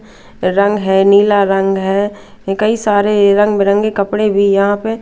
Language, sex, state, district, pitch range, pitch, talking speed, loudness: Hindi, female, Bihar, Katihar, 195-210 Hz, 200 Hz, 155 wpm, -13 LUFS